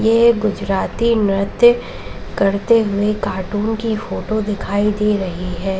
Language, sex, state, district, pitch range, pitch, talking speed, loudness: Hindi, female, Uttar Pradesh, Lalitpur, 195-225 Hz, 210 Hz, 135 wpm, -17 LUFS